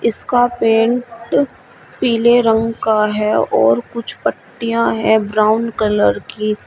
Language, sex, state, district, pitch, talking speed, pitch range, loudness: Hindi, female, Uttar Pradesh, Shamli, 225 Hz, 115 wpm, 215-235 Hz, -16 LUFS